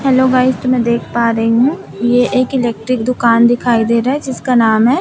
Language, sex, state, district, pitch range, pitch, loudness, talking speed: Hindi, female, Chhattisgarh, Raipur, 235-255 Hz, 245 Hz, -13 LUFS, 230 wpm